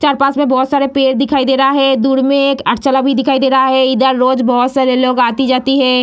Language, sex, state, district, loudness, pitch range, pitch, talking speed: Hindi, female, Bihar, Lakhisarai, -12 LUFS, 260-275 Hz, 265 Hz, 250 wpm